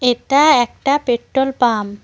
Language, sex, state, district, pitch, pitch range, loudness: Bengali, female, West Bengal, Cooch Behar, 250 Hz, 235-275 Hz, -15 LUFS